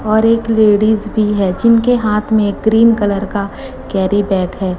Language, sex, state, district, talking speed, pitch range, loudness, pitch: Hindi, female, Chhattisgarh, Raipur, 175 wpm, 200-220 Hz, -13 LUFS, 210 Hz